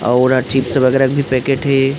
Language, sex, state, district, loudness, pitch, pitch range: Chhattisgarhi, male, Chhattisgarh, Rajnandgaon, -14 LUFS, 135 Hz, 130-135 Hz